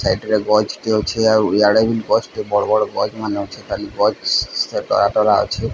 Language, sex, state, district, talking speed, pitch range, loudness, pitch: Odia, male, Odisha, Sambalpur, 165 wpm, 105-110 Hz, -17 LUFS, 105 Hz